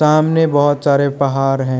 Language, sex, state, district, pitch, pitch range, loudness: Hindi, male, Arunachal Pradesh, Lower Dibang Valley, 140 Hz, 135-150 Hz, -14 LUFS